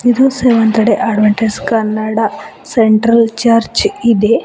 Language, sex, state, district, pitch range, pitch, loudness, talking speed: Kannada, female, Karnataka, Bidar, 220-245 Hz, 225 Hz, -12 LUFS, 110 wpm